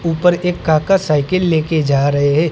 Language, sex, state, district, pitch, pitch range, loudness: Hindi, female, Gujarat, Gandhinagar, 160 Hz, 150-175 Hz, -15 LUFS